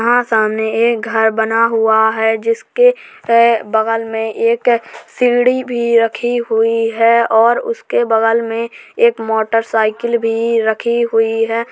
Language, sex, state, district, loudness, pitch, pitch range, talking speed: Hindi, female, Uttar Pradesh, Jalaun, -14 LUFS, 230 Hz, 225-235 Hz, 140 wpm